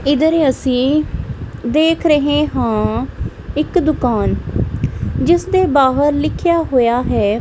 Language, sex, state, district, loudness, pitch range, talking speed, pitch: Punjabi, female, Punjab, Kapurthala, -16 LUFS, 260-320 Hz, 95 wpm, 295 Hz